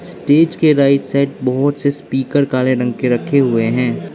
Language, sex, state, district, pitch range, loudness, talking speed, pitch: Hindi, male, Arunachal Pradesh, Lower Dibang Valley, 125-140 Hz, -15 LUFS, 190 wpm, 135 Hz